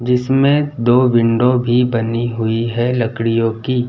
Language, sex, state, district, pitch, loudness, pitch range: Hindi, male, Madhya Pradesh, Bhopal, 120 Hz, -15 LUFS, 115-125 Hz